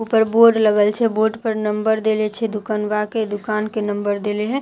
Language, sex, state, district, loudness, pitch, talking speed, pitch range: Maithili, female, Bihar, Katihar, -19 LUFS, 215 Hz, 210 wpm, 210-225 Hz